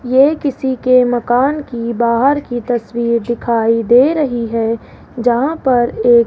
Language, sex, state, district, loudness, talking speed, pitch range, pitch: Hindi, female, Rajasthan, Jaipur, -15 LUFS, 155 wpm, 235-265 Hz, 240 Hz